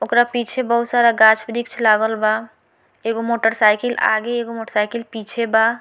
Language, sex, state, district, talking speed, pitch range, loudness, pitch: Bhojpuri, female, Bihar, Muzaffarpur, 145 wpm, 220-235 Hz, -18 LUFS, 230 Hz